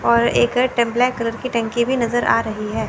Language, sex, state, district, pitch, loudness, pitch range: Hindi, female, Chandigarh, Chandigarh, 235 Hz, -19 LUFS, 215-245 Hz